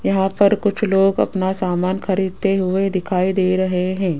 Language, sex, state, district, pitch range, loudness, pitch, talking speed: Hindi, female, Rajasthan, Jaipur, 185-195 Hz, -18 LUFS, 190 Hz, 170 wpm